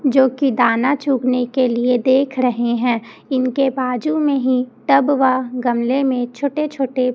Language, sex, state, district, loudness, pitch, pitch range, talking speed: Hindi, female, Chhattisgarh, Raipur, -17 LUFS, 255 Hz, 250-270 Hz, 160 wpm